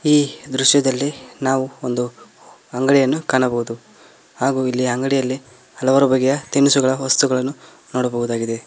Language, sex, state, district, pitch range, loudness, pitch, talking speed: Kannada, male, Karnataka, Koppal, 125-135 Hz, -18 LUFS, 130 Hz, 95 wpm